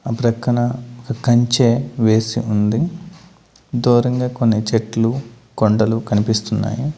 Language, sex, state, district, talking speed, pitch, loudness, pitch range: Telugu, male, Andhra Pradesh, Manyam, 95 wpm, 120 Hz, -18 LUFS, 110-125 Hz